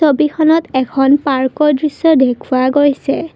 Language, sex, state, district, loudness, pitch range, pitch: Assamese, female, Assam, Kamrup Metropolitan, -13 LUFS, 260-305 Hz, 285 Hz